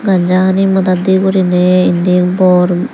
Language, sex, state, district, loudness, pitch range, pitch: Chakma, female, Tripura, Dhalai, -11 LUFS, 180-190 Hz, 185 Hz